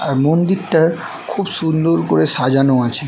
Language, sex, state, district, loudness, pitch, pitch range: Bengali, male, West Bengal, North 24 Parganas, -16 LUFS, 150 Hz, 130-165 Hz